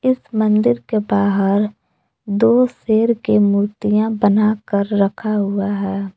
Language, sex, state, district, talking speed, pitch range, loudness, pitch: Hindi, female, Jharkhand, Palamu, 115 wpm, 200-220 Hz, -17 LUFS, 210 Hz